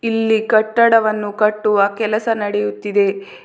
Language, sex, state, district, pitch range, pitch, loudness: Kannada, female, Karnataka, Bidar, 205-225 Hz, 215 Hz, -16 LUFS